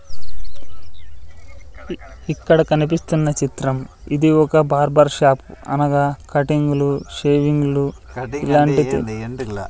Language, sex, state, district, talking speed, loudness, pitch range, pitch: Telugu, male, Andhra Pradesh, Sri Satya Sai, 70 wpm, -18 LUFS, 100-150 Hz, 140 Hz